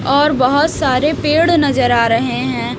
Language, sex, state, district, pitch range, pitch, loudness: Hindi, female, Haryana, Rohtak, 255-300 Hz, 280 Hz, -14 LUFS